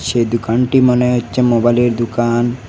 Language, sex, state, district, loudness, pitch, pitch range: Bengali, male, Assam, Hailakandi, -14 LUFS, 120 Hz, 120-125 Hz